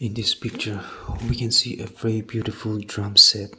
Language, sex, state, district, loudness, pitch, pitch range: English, male, Nagaland, Kohima, -20 LUFS, 110 Hz, 100-115 Hz